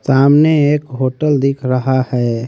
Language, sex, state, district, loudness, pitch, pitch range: Hindi, male, Haryana, Rohtak, -14 LUFS, 135 Hz, 130-145 Hz